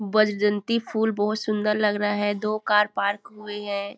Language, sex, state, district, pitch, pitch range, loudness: Hindi, female, Chhattisgarh, Bilaspur, 210 Hz, 205-215 Hz, -24 LUFS